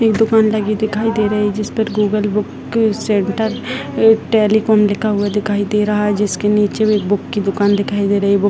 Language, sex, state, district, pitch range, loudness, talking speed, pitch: Hindi, female, Bihar, Purnia, 205-220 Hz, -16 LUFS, 210 wpm, 210 Hz